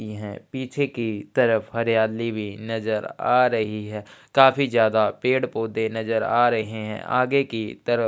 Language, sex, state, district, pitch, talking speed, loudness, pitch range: Hindi, male, Chhattisgarh, Sukma, 110 Hz, 170 wpm, -23 LUFS, 110-120 Hz